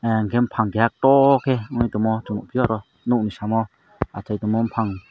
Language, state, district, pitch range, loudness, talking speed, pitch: Kokborok, Tripura, Dhalai, 105-120 Hz, -21 LUFS, 200 wpm, 110 Hz